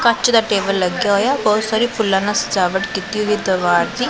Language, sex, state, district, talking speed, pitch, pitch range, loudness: Punjabi, female, Punjab, Pathankot, 205 wpm, 210 Hz, 195-225 Hz, -17 LUFS